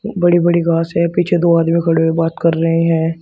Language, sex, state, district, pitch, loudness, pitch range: Hindi, male, Uttar Pradesh, Shamli, 165 Hz, -14 LUFS, 165-170 Hz